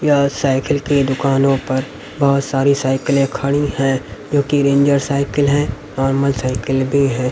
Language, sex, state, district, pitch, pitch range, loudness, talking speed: Hindi, male, Haryana, Rohtak, 140 Hz, 135-140 Hz, -16 LUFS, 155 wpm